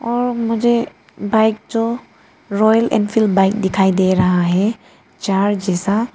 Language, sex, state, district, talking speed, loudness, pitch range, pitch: Hindi, female, Arunachal Pradesh, Papum Pare, 125 wpm, -16 LUFS, 195-230 Hz, 215 Hz